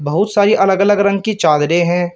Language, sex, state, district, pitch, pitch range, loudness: Hindi, male, Uttar Pradesh, Shamli, 195 Hz, 170-205 Hz, -13 LUFS